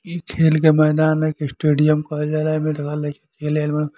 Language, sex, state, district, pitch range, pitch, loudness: Bhojpuri, male, Uttar Pradesh, Gorakhpur, 150-155 Hz, 155 Hz, -19 LUFS